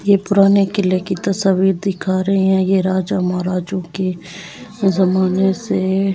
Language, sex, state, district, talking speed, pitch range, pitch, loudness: Hindi, female, Delhi, New Delhi, 135 wpm, 185-195 Hz, 190 Hz, -17 LUFS